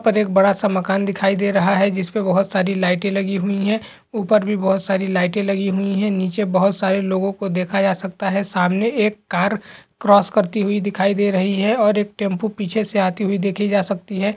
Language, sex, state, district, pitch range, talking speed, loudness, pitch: Hindi, male, Bihar, Jamui, 195-205 Hz, 225 wpm, -19 LUFS, 195 Hz